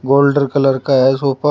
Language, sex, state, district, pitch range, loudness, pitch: Hindi, male, Uttar Pradesh, Shamli, 135-140 Hz, -14 LUFS, 140 Hz